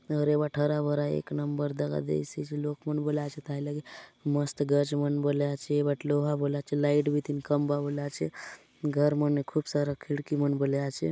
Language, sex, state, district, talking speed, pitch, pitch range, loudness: Halbi, male, Chhattisgarh, Bastar, 210 wpm, 145 Hz, 145-150 Hz, -30 LUFS